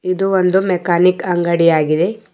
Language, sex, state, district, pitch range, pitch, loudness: Kannada, female, Karnataka, Bidar, 170-190 Hz, 180 Hz, -15 LUFS